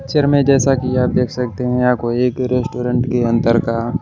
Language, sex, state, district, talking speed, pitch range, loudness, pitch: Hindi, male, Odisha, Malkangiri, 225 wpm, 120-130 Hz, -16 LUFS, 125 Hz